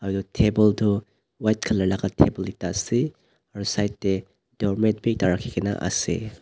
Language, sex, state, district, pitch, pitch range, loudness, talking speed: Nagamese, male, Nagaland, Dimapur, 100 Hz, 95-110 Hz, -24 LUFS, 150 wpm